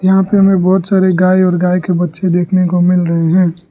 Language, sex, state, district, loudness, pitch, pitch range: Hindi, male, Arunachal Pradesh, Lower Dibang Valley, -12 LUFS, 180 Hz, 175-185 Hz